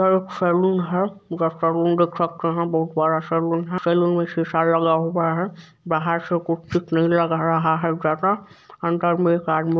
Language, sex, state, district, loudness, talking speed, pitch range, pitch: Maithili, male, Bihar, Supaul, -21 LUFS, 200 wpm, 165-175 Hz, 170 Hz